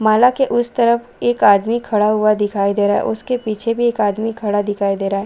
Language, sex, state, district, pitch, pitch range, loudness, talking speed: Hindi, female, Chhattisgarh, Balrampur, 215 Hz, 205-235 Hz, -16 LUFS, 240 wpm